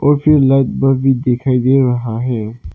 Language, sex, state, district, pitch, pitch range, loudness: Hindi, male, Arunachal Pradesh, Papum Pare, 130 Hz, 120-135 Hz, -14 LUFS